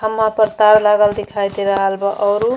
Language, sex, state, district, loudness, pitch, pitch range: Bhojpuri, female, Uttar Pradesh, Ghazipur, -15 LUFS, 210 Hz, 200-215 Hz